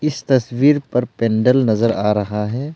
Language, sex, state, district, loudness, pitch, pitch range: Hindi, male, Arunachal Pradesh, Longding, -17 LUFS, 125 Hz, 110-135 Hz